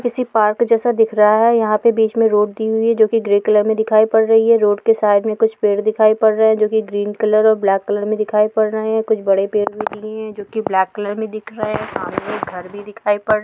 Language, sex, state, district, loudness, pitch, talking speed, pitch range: Hindi, female, Bihar, Saharsa, -16 LUFS, 215 Hz, 300 wpm, 210-220 Hz